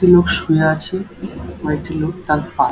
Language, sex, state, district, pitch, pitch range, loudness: Bengali, male, West Bengal, Dakshin Dinajpur, 160 Hz, 155-180 Hz, -17 LUFS